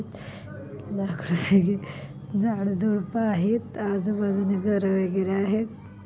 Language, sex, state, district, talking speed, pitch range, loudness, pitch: Marathi, female, Maharashtra, Solapur, 80 wpm, 190-210 Hz, -25 LUFS, 200 Hz